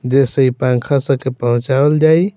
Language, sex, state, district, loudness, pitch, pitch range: Bhojpuri, male, Bihar, Muzaffarpur, -15 LUFS, 135 Hz, 125-145 Hz